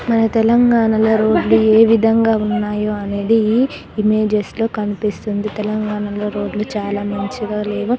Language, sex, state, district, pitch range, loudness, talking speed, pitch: Telugu, female, Telangana, Nalgonda, 210-225 Hz, -16 LUFS, 105 wpm, 215 Hz